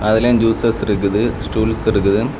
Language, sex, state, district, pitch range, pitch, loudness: Tamil, male, Tamil Nadu, Kanyakumari, 105-115 Hz, 110 Hz, -16 LUFS